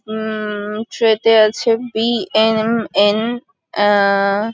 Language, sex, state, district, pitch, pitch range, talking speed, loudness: Bengali, female, West Bengal, Kolkata, 220 Hz, 210-230 Hz, 80 wpm, -16 LUFS